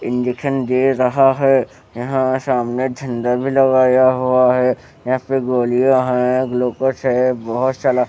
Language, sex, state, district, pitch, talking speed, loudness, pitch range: Hindi, male, Bihar, West Champaran, 130 Hz, 120 wpm, -16 LUFS, 125-130 Hz